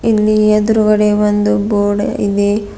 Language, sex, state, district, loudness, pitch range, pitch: Kannada, female, Karnataka, Bidar, -13 LUFS, 205-215 Hz, 210 Hz